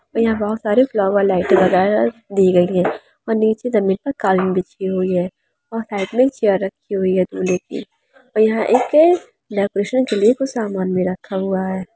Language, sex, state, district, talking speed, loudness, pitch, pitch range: Hindi, female, Andhra Pradesh, Chittoor, 170 wpm, -18 LUFS, 200 Hz, 185-225 Hz